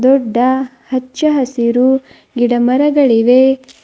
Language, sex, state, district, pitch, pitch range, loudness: Kannada, female, Karnataka, Bidar, 260 Hz, 245-265 Hz, -13 LUFS